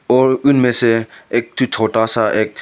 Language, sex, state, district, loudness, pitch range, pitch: Hindi, male, Arunachal Pradesh, Lower Dibang Valley, -15 LUFS, 115-130 Hz, 120 Hz